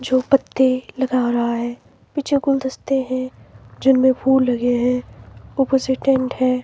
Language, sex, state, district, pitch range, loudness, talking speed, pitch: Hindi, female, Himachal Pradesh, Shimla, 255-265 Hz, -19 LUFS, 145 wpm, 260 Hz